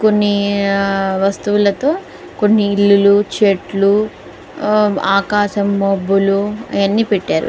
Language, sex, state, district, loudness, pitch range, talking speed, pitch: Telugu, female, Andhra Pradesh, Guntur, -15 LUFS, 195-210 Hz, 65 wpm, 200 Hz